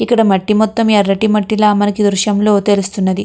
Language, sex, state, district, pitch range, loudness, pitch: Telugu, female, Andhra Pradesh, Krishna, 200-215 Hz, -13 LUFS, 205 Hz